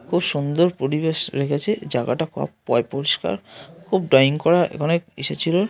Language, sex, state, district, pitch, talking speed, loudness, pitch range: Bengali, male, West Bengal, North 24 Parganas, 160 Hz, 125 wpm, -21 LUFS, 135-175 Hz